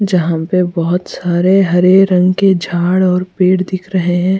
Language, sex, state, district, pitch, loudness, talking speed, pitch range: Hindi, female, Goa, North and South Goa, 185 Hz, -13 LUFS, 190 wpm, 175-185 Hz